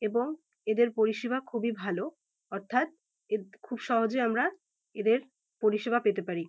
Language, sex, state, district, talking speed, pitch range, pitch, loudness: Bengali, female, West Bengal, North 24 Parganas, 130 wpm, 215-255 Hz, 235 Hz, -30 LUFS